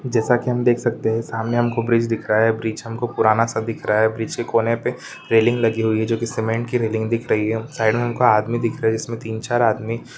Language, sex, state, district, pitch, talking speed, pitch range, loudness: Hindi, male, Rajasthan, Nagaur, 115 Hz, 260 wpm, 110-120 Hz, -20 LUFS